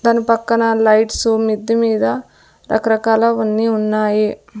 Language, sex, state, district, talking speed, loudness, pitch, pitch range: Telugu, female, Andhra Pradesh, Sri Satya Sai, 105 wpm, -15 LUFS, 220 Hz, 215-230 Hz